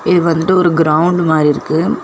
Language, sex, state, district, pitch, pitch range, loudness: Tamil, female, Tamil Nadu, Chennai, 165 Hz, 155-180 Hz, -13 LUFS